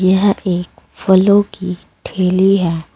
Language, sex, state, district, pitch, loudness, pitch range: Hindi, female, Uttar Pradesh, Saharanpur, 185 Hz, -14 LUFS, 180-195 Hz